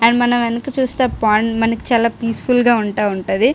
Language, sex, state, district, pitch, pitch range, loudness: Telugu, female, Andhra Pradesh, Srikakulam, 235 Hz, 225-245 Hz, -16 LUFS